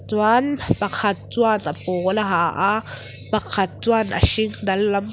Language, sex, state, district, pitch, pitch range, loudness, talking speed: Mizo, female, Mizoram, Aizawl, 210 Hz, 190-220 Hz, -20 LUFS, 165 wpm